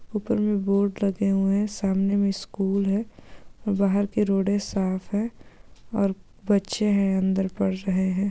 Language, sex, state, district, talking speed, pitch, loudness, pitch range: Hindi, female, Goa, North and South Goa, 160 wpm, 200 Hz, -25 LUFS, 195-205 Hz